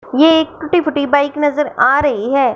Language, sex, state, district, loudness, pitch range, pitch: Hindi, female, Punjab, Fazilka, -14 LUFS, 280-310 Hz, 290 Hz